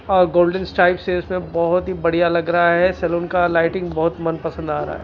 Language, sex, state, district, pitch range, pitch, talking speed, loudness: Hindi, male, Bihar, Kaimur, 170-180 Hz, 175 Hz, 240 wpm, -18 LUFS